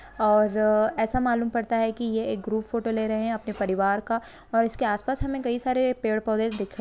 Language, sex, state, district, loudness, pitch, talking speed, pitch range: Hindi, female, Jharkhand, Jamtara, -25 LUFS, 225 Hz, 235 wpm, 215-235 Hz